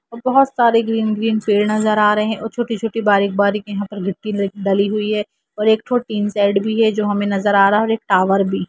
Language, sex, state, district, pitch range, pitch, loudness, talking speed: Hindi, female, Jharkhand, Jamtara, 200-225 Hz, 210 Hz, -17 LUFS, 250 wpm